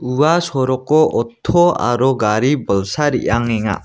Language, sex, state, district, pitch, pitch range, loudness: Garo, male, Meghalaya, West Garo Hills, 130 Hz, 115-150 Hz, -16 LUFS